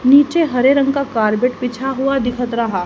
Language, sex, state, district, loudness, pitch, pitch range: Hindi, female, Haryana, Jhajjar, -16 LUFS, 255 Hz, 240-275 Hz